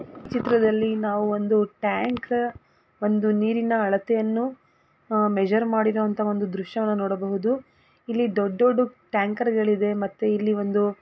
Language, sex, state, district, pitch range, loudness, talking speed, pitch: Kannada, female, Karnataka, Gulbarga, 205-230 Hz, -24 LUFS, 115 wpm, 215 Hz